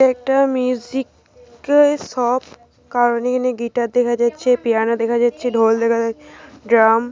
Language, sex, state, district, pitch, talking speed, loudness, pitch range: Bengali, female, Jharkhand, Jamtara, 245 Hz, 150 wpm, -17 LUFS, 235-260 Hz